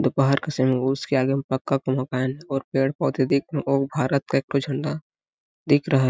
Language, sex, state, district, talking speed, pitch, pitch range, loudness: Hindi, male, Chhattisgarh, Balrampur, 205 wpm, 135 Hz, 130-140 Hz, -23 LUFS